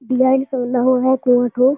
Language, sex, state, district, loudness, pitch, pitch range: Hindi, male, Bihar, Jamui, -16 LUFS, 255 Hz, 250-260 Hz